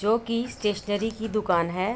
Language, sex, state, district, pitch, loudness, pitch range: Hindi, female, Uttar Pradesh, Budaun, 215 Hz, -26 LUFS, 205-225 Hz